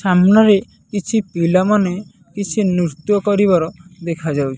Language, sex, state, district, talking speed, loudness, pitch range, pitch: Odia, male, Odisha, Nuapada, 105 wpm, -16 LUFS, 170-205 Hz, 185 Hz